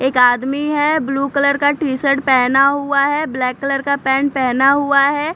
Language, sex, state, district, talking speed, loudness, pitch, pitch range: Hindi, female, Maharashtra, Mumbai Suburban, 190 wpm, -15 LUFS, 275 Hz, 265-285 Hz